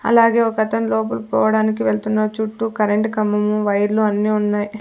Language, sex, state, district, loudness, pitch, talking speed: Telugu, female, Andhra Pradesh, Sri Satya Sai, -18 LUFS, 210 Hz, 135 wpm